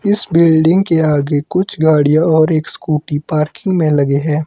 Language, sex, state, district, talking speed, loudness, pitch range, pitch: Hindi, male, Himachal Pradesh, Shimla, 175 wpm, -13 LUFS, 150-165 Hz, 155 Hz